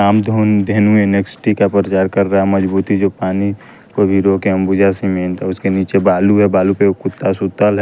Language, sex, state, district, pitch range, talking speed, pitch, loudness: Hindi, male, Bihar, West Champaran, 95-100 Hz, 190 wpm, 100 Hz, -14 LUFS